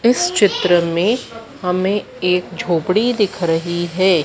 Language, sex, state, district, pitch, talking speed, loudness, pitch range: Hindi, female, Madhya Pradesh, Dhar, 180 Hz, 125 wpm, -17 LUFS, 175-205 Hz